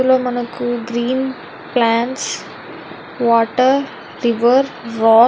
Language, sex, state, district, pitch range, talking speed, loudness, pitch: Telugu, female, Andhra Pradesh, Visakhapatnam, 235-255 Hz, 90 wpm, -17 LUFS, 245 Hz